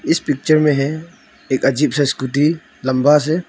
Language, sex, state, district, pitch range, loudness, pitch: Hindi, female, Arunachal Pradesh, Longding, 135-155 Hz, -17 LUFS, 145 Hz